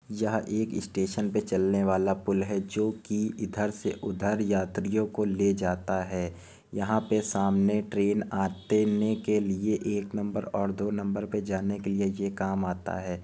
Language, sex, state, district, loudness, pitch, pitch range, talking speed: Hindi, male, Uttar Pradesh, Hamirpur, -29 LUFS, 100 Hz, 95-105 Hz, 170 wpm